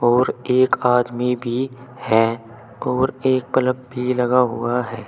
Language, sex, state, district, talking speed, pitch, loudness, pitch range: Hindi, male, Uttar Pradesh, Saharanpur, 140 wpm, 125 Hz, -20 LUFS, 120-125 Hz